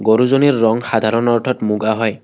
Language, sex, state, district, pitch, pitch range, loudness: Assamese, male, Assam, Kamrup Metropolitan, 115 Hz, 110-120 Hz, -15 LUFS